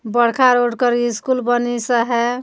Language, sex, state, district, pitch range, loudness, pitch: Hindi, female, Chhattisgarh, Sarguja, 235-245 Hz, -17 LUFS, 240 Hz